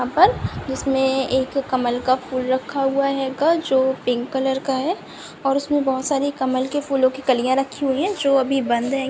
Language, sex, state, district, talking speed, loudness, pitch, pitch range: Hindi, female, Bihar, Gopalganj, 210 wpm, -21 LUFS, 265 Hz, 260-275 Hz